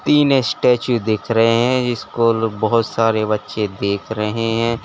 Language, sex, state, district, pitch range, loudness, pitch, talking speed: Hindi, male, Uttar Pradesh, Lalitpur, 110-120 Hz, -18 LUFS, 115 Hz, 160 wpm